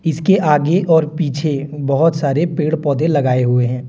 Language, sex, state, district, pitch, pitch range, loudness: Hindi, male, Jharkhand, Deoghar, 150 Hz, 140-160 Hz, -16 LUFS